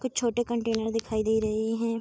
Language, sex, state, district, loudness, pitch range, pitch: Hindi, female, Bihar, Vaishali, -28 LUFS, 220-235 Hz, 225 Hz